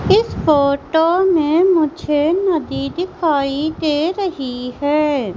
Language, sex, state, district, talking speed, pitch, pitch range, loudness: Hindi, female, Madhya Pradesh, Umaria, 100 wpm, 310 Hz, 285-345 Hz, -17 LUFS